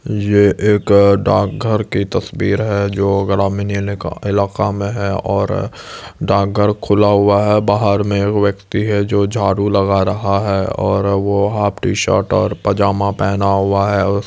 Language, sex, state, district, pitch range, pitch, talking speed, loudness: Hindi, male, Bihar, Supaul, 100-105 Hz, 100 Hz, 155 wpm, -15 LUFS